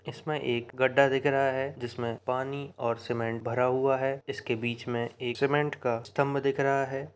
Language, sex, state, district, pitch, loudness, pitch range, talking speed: Hindi, male, Bihar, Begusarai, 130 Hz, -29 LUFS, 120-140 Hz, 195 wpm